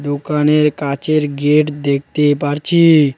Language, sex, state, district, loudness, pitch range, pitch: Bengali, male, West Bengal, Cooch Behar, -15 LUFS, 145-150 Hz, 145 Hz